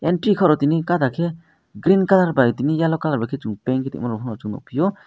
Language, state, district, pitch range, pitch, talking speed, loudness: Kokborok, Tripura, West Tripura, 130-175 Hz, 155 Hz, 200 wpm, -20 LUFS